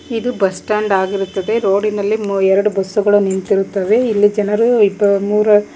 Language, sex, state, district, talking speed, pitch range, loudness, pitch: Kannada, female, Karnataka, Bangalore, 125 wpm, 195-215 Hz, -15 LUFS, 205 Hz